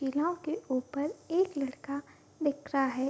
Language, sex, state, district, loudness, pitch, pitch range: Hindi, female, Bihar, Kishanganj, -33 LUFS, 285 Hz, 270-320 Hz